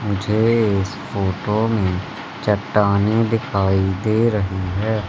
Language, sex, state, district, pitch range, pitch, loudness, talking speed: Hindi, male, Madhya Pradesh, Katni, 95-110 Hz, 105 Hz, -19 LUFS, 105 wpm